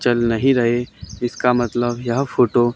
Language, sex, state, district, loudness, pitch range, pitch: Hindi, male, Haryana, Charkhi Dadri, -19 LUFS, 120-125 Hz, 120 Hz